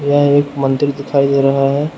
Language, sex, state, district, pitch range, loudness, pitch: Hindi, male, Uttar Pradesh, Lucknow, 140-145 Hz, -14 LUFS, 140 Hz